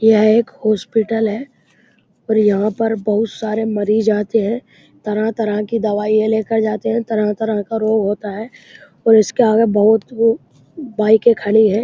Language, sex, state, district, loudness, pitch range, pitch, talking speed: Hindi, male, Uttar Pradesh, Muzaffarnagar, -16 LUFS, 215-225 Hz, 220 Hz, 155 wpm